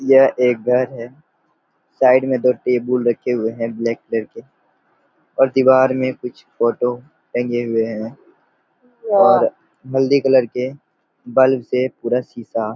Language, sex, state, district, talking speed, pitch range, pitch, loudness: Hindi, male, Jharkhand, Sahebganj, 145 wpm, 120-130 Hz, 125 Hz, -17 LUFS